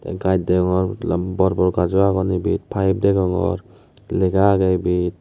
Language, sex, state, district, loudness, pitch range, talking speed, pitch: Chakma, male, Tripura, West Tripura, -19 LUFS, 90-95 Hz, 150 wpm, 95 Hz